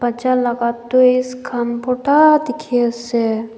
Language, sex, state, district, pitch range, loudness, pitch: Nagamese, female, Nagaland, Dimapur, 235-255 Hz, -16 LUFS, 245 Hz